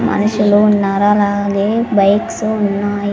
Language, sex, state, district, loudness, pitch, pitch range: Telugu, female, Andhra Pradesh, Sri Satya Sai, -14 LUFS, 205 Hz, 200-210 Hz